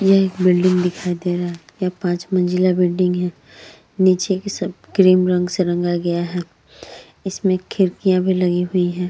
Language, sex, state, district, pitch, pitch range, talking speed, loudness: Hindi, female, Chhattisgarh, Korba, 180 Hz, 175-185 Hz, 170 wpm, -18 LUFS